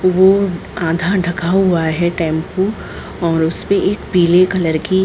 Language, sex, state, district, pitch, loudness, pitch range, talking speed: Hindi, female, Chhattisgarh, Bilaspur, 180 Hz, -15 LUFS, 165-190 Hz, 155 wpm